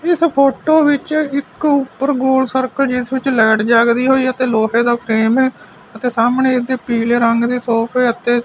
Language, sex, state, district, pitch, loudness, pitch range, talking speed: Punjabi, male, Punjab, Fazilka, 250 Hz, -15 LUFS, 235-265 Hz, 175 wpm